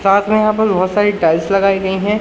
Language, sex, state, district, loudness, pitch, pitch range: Hindi, male, Madhya Pradesh, Umaria, -14 LUFS, 195 Hz, 190-210 Hz